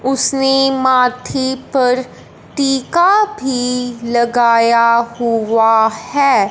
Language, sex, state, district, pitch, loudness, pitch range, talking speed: Hindi, male, Punjab, Fazilka, 250 Hz, -14 LUFS, 235-270 Hz, 75 wpm